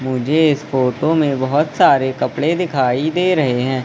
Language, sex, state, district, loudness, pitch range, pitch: Hindi, male, Madhya Pradesh, Katni, -16 LUFS, 130-155 Hz, 140 Hz